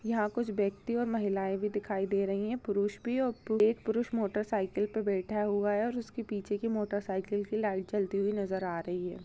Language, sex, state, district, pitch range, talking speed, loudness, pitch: Hindi, female, Chhattisgarh, Bastar, 200-220 Hz, 220 wpm, -32 LUFS, 205 Hz